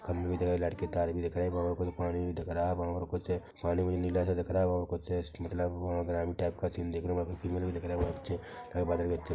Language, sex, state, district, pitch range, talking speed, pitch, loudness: Hindi, male, Chhattisgarh, Korba, 85-90 Hz, 255 wpm, 90 Hz, -34 LUFS